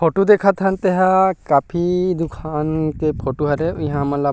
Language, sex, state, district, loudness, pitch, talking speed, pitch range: Chhattisgarhi, male, Chhattisgarh, Rajnandgaon, -18 LUFS, 165 Hz, 165 wpm, 150-185 Hz